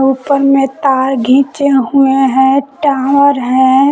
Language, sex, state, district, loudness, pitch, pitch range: Hindi, female, Jharkhand, Palamu, -11 LUFS, 270 Hz, 265-280 Hz